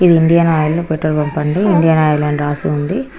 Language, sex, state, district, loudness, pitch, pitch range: Telugu, female, Telangana, Karimnagar, -14 LUFS, 155 Hz, 150-170 Hz